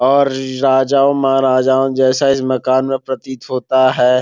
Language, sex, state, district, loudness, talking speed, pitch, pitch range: Hindi, male, Bihar, Gopalganj, -14 LUFS, 140 wpm, 130 Hz, 130-135 Hz